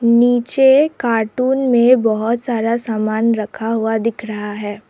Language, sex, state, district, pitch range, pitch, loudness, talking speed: Hindi, female, Assam, Sonitpur, 220-245 Hz, 230 Hz, -16 LUFS, 135 wpm